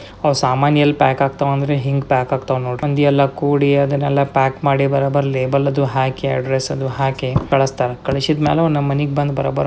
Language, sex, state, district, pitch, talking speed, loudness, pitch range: Kannada, male, Karnataka, Belgaum, 140 Hz, 155 wpm, -17 LUFS, 135-145 Hz